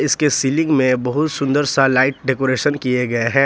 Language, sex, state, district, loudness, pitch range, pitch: Hindi, male, Jharkhand, Ranchi, -17 LUFS, 130-145 Hz, 135 Hz